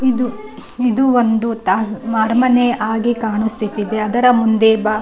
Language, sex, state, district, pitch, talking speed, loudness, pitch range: Kannada, female, Karnataka, Raichur, 225 Hz, 130 wpm, -15 LUFS, 215-245 Hz